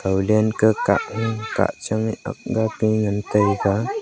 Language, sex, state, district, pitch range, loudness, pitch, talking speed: Wancho, male, Arunachal Pradesh, Longding, 105-110 Hz, -21 LUFS, 110 Hz, 120 wpm